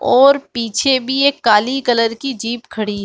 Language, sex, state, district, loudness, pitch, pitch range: Hindi, female, Uttar Pradesh, Muzaffarnagar, -15 LUFS, 245 Hz, 225-270 Hz